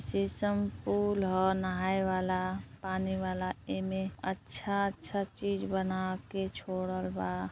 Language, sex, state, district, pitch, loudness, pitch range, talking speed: Bhojpuri, female, Uttar Pradesh, Gorakhpur, 185 Hz, -33 LUFS, 185-190 Hz, 105 wpm